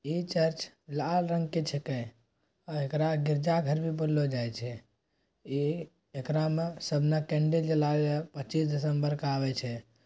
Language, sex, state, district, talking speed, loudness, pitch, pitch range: Maithili, male, Bihar, Bhagalpur, 150 wpm, -31 LUFS, 150 Hz, 140-160 Hz